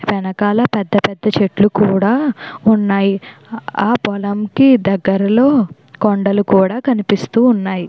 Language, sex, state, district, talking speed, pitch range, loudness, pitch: Telugu, female, Andhra Pradesh, Chittoor, 100 wpm, 195-225 Hz, -15 LUFS, 205 Hz